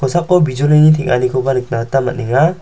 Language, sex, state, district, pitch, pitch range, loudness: Garo, male, Meghalaya, South Garo Hills, 135 Hz, 125-155 Hz, -14 LUFS